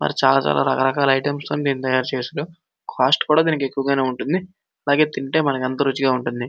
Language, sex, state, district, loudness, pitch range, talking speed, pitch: Telugu, male, Andhra Pradesh, Srikakulam, -20 LUFS, 130-145 Hz, 185 wpm, 140 Hz